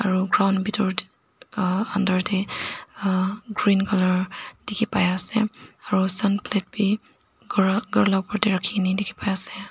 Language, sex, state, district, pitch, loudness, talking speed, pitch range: Nagamese, female, Nagaland, Dimapur, 200 Hz, -23 LUFS, 150 wpm, 190-210 Hz